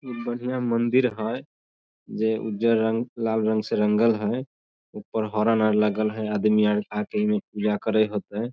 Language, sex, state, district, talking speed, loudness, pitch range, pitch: Maithili, male, Bihar, Samastipur, 175 wpm, -24 LUFS, 105-115 Hz, 110 Hz